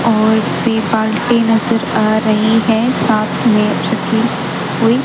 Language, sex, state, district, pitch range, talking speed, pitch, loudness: Hindi, female, Haryana, Jhajjar, 215-230 Hz, 120 wpm, 225 Hz, -14 LUFS